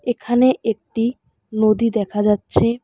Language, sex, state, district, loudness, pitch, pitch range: Bengali, female, West Bengal, Alipurduar, -19 LUFS, 230 Hz, 215-240 Hz